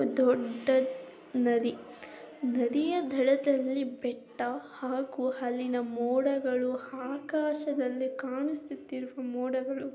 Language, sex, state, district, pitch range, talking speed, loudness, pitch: Kannada, female, Karnataka, Chamarajanagar, 250-275 Hz, 70 wpm, -31 LUFS, 260 Hz